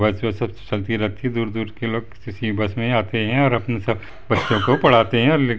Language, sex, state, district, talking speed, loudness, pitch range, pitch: Hindi, male, Chhattisgarh, Bastar, 260 wpm, -20 LUFS, 110-120 Hz, 115 Hz